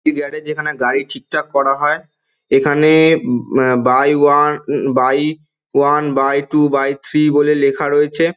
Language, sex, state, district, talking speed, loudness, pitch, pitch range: Bengali, male, West Bengal, Dakshin Dinajpur, 160 wpm, -15 LUFS, 145 Hz, 140-150 Hz